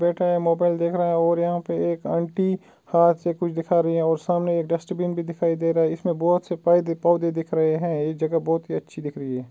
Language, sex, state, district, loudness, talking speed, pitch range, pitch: Hindi, male, Uttar Pradesh, Ghazipur, -23 LUFS, 260 wpm, 165-175 Hz, 170 Hz